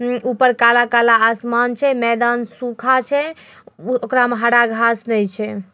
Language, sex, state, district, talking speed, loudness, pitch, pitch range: Magahi, female, Bihar, Samastipur, 145 wpm, -16 LUFS, 240 Hz, 230-250 Hz